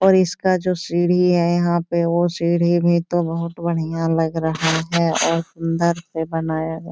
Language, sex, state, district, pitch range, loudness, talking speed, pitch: Hindi, female, Bihar, Supaul, 165-175 Hz, -19 LUFS, 180 wpm, 170 Hz